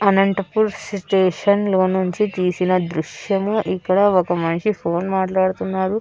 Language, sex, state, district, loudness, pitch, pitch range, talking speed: Telugu, female, Andhra Pradesh, Anantapur, -19 LUFS, 190 Hz, 185-200 Hz, 110 wpm